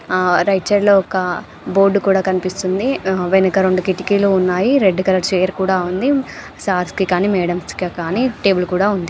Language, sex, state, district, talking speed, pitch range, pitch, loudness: Telugu, female, Andhra Pradesh, Anantapur, 180 wpm, 185-195 Hz, 190 Hz, -16 LUFS